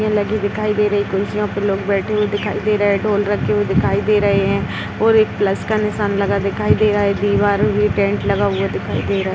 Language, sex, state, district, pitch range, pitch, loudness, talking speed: Hindi, female, Uttar Pradesh, Etah, 200-210 Hz, 205 Hz, -17 LUFS, 250 wpm